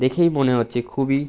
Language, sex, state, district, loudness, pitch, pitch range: Bengali, male, West Bengal, Jhargram, -20 LUFS, 135 Hz, 125-140 Hz